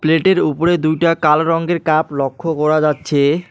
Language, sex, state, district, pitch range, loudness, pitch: Bengali, male, West Bengal, Alipurduar, 150-165 Hz, -15 LUFS, 160 Hz